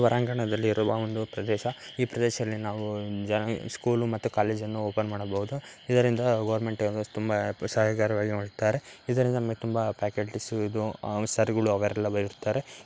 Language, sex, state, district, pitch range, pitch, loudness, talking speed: Kannada, male, Karnataka, Dakshina Kannada, 105-115 Hz, 110 Hz, -28 LUFS, 60 wpm